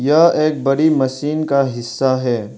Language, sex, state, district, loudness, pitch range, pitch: Hindi, male, Arunachal Pradesh, Longding, -16 LUFS, 130-155 Hz, 135 Hz